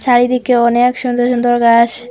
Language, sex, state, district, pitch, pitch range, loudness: Bengali, female, Assam, Hailakandi, 245 Hz, 240-245 Hz, -12 LUFS